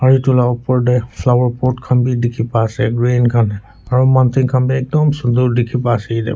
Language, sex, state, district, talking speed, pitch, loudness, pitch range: Nagamese, male, Nagaland, Kohima, 200 wpm, 125 Hz, -15 LUFS, 120-130 Hz